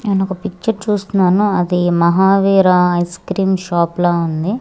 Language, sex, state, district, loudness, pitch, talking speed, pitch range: Telugu, female, Andhra Pradesh, Manyam, -15 LUFS, 185 Hz, 115 wpm, 175-195 Hz